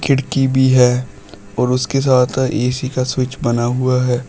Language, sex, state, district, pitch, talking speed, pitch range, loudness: Hindi, male, Uttar Pradesh, Shamli, 125 Hz, 180 wpm, 125-130 Hz, -16 LUFS